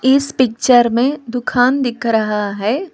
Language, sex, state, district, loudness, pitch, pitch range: Hindi, female, Telangana, Hyderabad, -15 LUFS, 245 Hz, 230-260 Hz